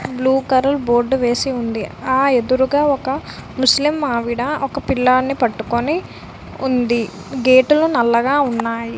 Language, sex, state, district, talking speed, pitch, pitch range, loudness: Telugu, female, Andhra Pradesh, Visakhapatnam, 120 wpm, 260 Hz, 240-275 Hz, -17 LUFS